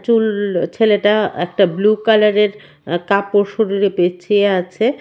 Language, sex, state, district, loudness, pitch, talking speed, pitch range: Bengali, female, Tripura, West Tripura, -16 LUFS, 205 Hz, 120 wpm, 180-210 Hz